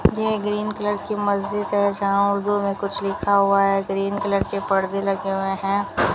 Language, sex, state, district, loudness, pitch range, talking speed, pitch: Hindi, female, Rajasthan, Bikaner, -22 LUFS, 195-205 Hz, 195 wpm, 200 Hz